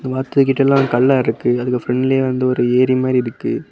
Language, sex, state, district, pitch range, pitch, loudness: Tamil, male, Tamil Nadu, Kanyakumari, 125-135 Hz, 130 Hz, -16 LUFS